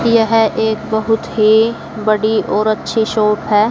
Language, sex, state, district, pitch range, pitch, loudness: Hindi, female, Haryana, Jhajjar, 215-225 Hz, 220 Hz, -14 LUFS